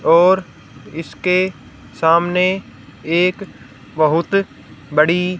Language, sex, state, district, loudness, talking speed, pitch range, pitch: Hindi, female, Haryana, Rohtak, -16 LUFS, 65 wpm, 140-180 Hz, 165 Hz